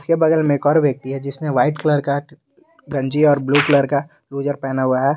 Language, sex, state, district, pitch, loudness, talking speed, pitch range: Hindi, male, Jharkhand, Garhwa, 145 Hz, -18 LUFS, 230 wpm, 140-155 Hz